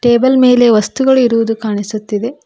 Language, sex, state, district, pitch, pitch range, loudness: Kannada, female, Karnataka, Koppal, 235 Hz, 215-250 Hz, -12 LUFS